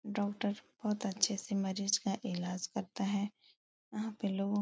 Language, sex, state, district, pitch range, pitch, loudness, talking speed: Hindi, female, Uttar Pradesh, Etah, 195-210 Hz, 200 Hz, -36 LUFS, 170 wpm